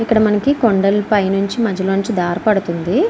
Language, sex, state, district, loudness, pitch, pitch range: Telugu, female, Andhra Pradesh, Srikakulam, -16 LUFS, 205 Hz, 195-220 Hz